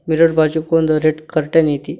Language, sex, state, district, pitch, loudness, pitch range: Kannada, male, Karnataka, Koppal, 155 Hz, -16 LUFS, 155-165 Hz